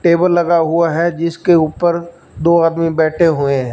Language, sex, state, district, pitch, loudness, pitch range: Hindi, male, Punjab, Fazilka, 170 Hz, -14 LUFS, 160-170 Hz